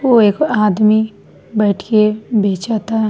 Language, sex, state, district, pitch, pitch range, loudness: Bhojpuri, female, Bihar, East Champaran, 215 Hz, 210-225 Hz, -15 LUFS